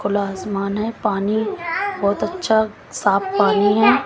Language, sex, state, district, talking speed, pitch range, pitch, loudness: Hindi, female, Haryana, Jhajjar, 135 wpm, 200-220 Hz, 205 Hz, -19 LUFS